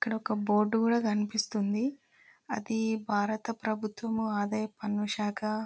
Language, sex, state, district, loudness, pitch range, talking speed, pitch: Telugu, female, Telangana, Karimnagar, -31 LUFS, 210-225 Hz, 115 wpm, 215 Hz